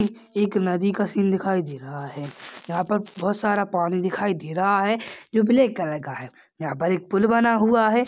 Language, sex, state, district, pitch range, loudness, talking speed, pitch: Hindi, male, Chhattisgarh, Balrampur, 170-210 Hz, -23 LUFS, 215 wpm, 195 Hz